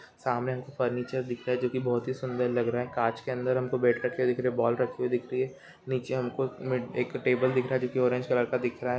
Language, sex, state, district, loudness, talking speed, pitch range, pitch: Hindi, male, Andhra Pradesh, Guntur, -29 LUFS, 280 wpm, 125-130 Hz, 125 Hz